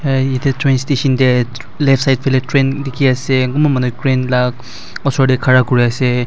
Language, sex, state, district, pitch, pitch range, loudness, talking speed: Nagamese, male, Nagaland, Dimapur, 130 Hz, 125-135 Hz, -14 LUFS, 170 wpm